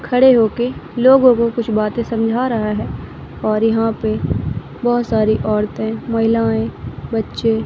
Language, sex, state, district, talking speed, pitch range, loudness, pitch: Hindi, female, Madhya Pradesh, Katni, 135 wpm, 215-240 Hz, -17 LUFS, 225 Hz